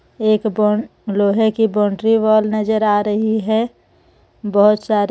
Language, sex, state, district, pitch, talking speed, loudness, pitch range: Hindi, female, Jharkhand, Ranchi, 215 Hz, 140 wpm, -16 LUFS, 210-220 Hz